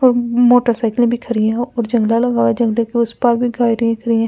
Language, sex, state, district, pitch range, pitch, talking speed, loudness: Hindi, female, Delhi, New Delhi, 230-240 Hz, 235 Hz, 250 wpm, -15 LUFS